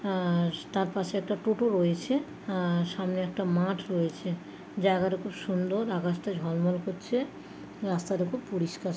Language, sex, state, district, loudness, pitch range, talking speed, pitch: Bengali, female, West Bengal, Dakshin Dinajpur, -30 LUFS, 175-200 Hz, 155 wpm, 185 Hz